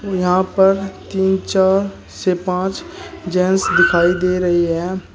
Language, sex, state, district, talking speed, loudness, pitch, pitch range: Hindi, male, Uttar Pradesh, Shamli, 130 wpm, -17 LUFS, 185 Hz, 180-190 Hz